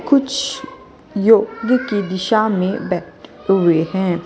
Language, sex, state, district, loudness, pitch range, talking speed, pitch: Hindi, female, Chhattisgarh, Raipur, -17 LUFS, 185-250 Hz, 115 wpm, 210 Hz